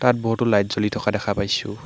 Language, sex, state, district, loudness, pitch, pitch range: Assamese, male, Assam, Hailakandi, -22 LUFS, 105 Hz, 100-115 Hz